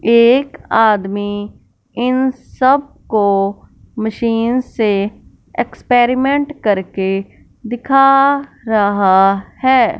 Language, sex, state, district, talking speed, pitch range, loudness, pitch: Hindi, female, Punjab, Fazilka, 65 wpm, 205-260 Hz, -15 LUFS, 230 Hz